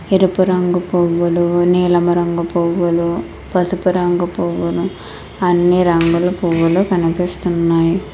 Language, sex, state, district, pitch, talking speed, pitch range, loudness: Telugu, female, Telangana, Hyderabad, 175 Hz, 95 wpm, 170-180 Hz, -15 LUFS